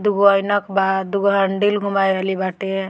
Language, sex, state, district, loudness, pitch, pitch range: Bhojpuri, female, Bihar, Muzaffarpur, -18 LUFS, 195 Hz, 190-200 Hz